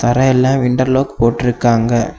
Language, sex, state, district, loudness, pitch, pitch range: Tamil, male, Tamil Nadu, Kanyakumari, -14 LUFS, 125 Hz, 120-130 Hz